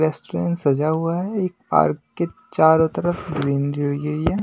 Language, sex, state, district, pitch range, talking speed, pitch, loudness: Hindi, male, Maharashtra, Washim, 145-175 Hz, 175 wpm, 160 Hz, -21 LUFS